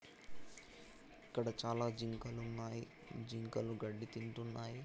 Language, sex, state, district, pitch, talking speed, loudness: Telugu, male, Telangana, Karimnagar, 115 Hz, 85 wpm, -44 LUFS